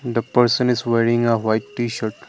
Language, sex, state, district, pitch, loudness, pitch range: English, male, Assam, Kamrup Metropolitan, 120 Hz, -19 LUFS, 115-120 Hz